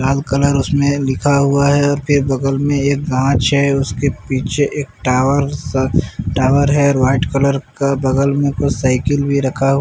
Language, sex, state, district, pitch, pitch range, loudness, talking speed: Hindi, male, Bihar, Patna, 140 Hz, 135-140 Hz, -15 LUFS, 190 wpm